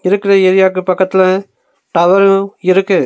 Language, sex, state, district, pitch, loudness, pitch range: Tamil, male, Tamil Nadu, Nilgiris, 190 Hz, -11 LUFS, 185-195 Hz